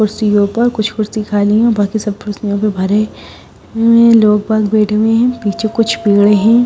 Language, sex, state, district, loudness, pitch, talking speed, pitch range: Hindi, female, Odisha, Sambalpur, -12 LUFS, 215 Hz, 190 wpm, 205-225 Hz